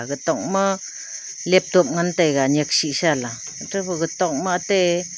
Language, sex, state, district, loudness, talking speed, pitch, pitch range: Wancho, female, Arunachal Pradesh, Longding, -21 LUFS, 150 wpm, 175 Hz, 150-185 Hz